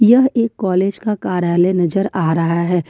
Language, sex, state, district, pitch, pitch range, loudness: Hindi, female, Jharkhand, Ranchi, 185 Hz, 175-215 Hz, -16 LUFS